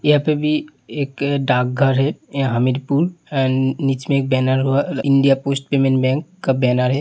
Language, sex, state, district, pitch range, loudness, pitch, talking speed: Hindi, male, Uttar Pradesh, Hamirpur, 130-140 Hz, -18 LUFS, 135 Hz, 180 wpm